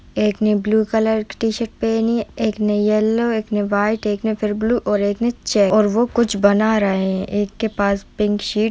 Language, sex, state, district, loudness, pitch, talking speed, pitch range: Hindi, female, Bihar, Jamui, -18 LUFS, 215 Hz, 215 wpm, 205-225 Hz